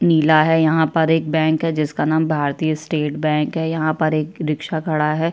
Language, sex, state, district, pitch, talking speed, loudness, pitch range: Hindi, female, Chhattisgarh, Kabirdham, 155 Hz, 215 wpm, -18 LUFS, 155-160 Hz